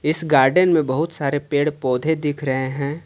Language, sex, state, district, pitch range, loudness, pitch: Hindi, male, Jharkhand, Ranchi, 135-160 Hz, -19 LUFS, 145 Hz